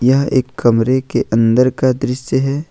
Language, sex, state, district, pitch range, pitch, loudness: Hindi, male, Jharkhand, Ranchi, 125-135 Hz, 130 Hz, -15 LUFS